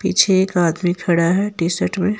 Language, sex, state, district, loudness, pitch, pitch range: Hindi, female, Jharkhand, Ranchi, -17 LUFS, 185 Hz, 170-195 Hz